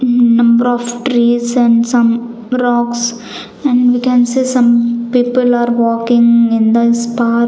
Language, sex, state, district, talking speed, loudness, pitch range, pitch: English, female, Chandigarh, Chandigarh, 145 wpm, -12 LUFS, 235-245 Hz, 240 Hz